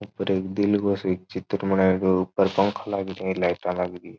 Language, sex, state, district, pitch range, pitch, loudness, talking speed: Marwari, male, Rajasthan, Churu, 95-100 Hz, 95 Hz, -24 LUFS, 245 wpm